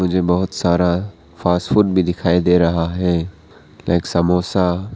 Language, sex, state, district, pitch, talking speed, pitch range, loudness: Hindi, male, Arunachal Pradesh, Papum Pare, 90 Hz, 135 wpm, 85-90 Hz, -17 LUFS